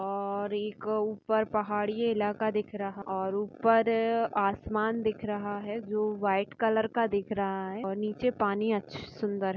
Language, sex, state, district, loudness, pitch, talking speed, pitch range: Hindi, female, Maharashtra, Nagpur, -30 LUFS, 210 Hz, 170 wpm, 200-220 Hz